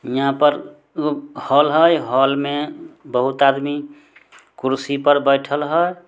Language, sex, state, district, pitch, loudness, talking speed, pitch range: Maithili, male, Bihar, Samastipur, 145 Hz, -18 LUFS, 120 wpm, 135-150 Hz